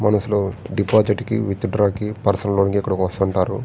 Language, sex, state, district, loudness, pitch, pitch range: Telugu, male, Andhra Pradesh, Srikakulam, -20 LUFS, 100 Hz, 100-105 Hz